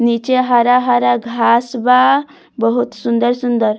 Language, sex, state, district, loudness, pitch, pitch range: Bhojpuri, female, Bihar, Muzaffarpur, -14 LUFS, 245 Hz, 235-250 Hz